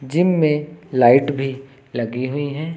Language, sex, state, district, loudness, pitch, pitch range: Hindi, male, Uttar Pradesh, Lucknow, -19 LUFS, 140 Hz, 130-155 Hz